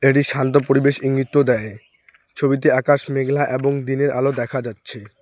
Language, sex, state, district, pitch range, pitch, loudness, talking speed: Bengali, male, West Bengal, Alipurduar, 130-140 Hz, 135 Hz, -18 LUFS, 160 wpm